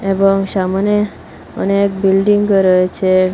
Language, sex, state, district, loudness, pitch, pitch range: Bengali, female, Assam, Hailakandi, -14 LUFS, 195 Hz, 185-200 Hz